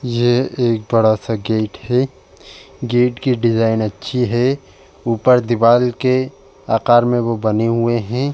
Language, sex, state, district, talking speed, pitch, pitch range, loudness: Hindi, male, Uttar Pradesh, Jalaun, 145 wpm, 120 Hz, 115-125 Hz, -16 LUFS